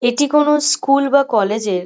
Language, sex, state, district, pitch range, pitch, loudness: Bengali, female, West Bengal, North 24 Parganas, 215-295 Hz, 275 Hz, -15 LUFS